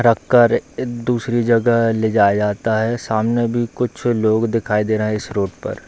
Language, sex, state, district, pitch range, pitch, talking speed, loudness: Hindi, male, Bihar, Darbhanga, 110-120 Hz, 115 Hz, 195 wpm, -18 LUFS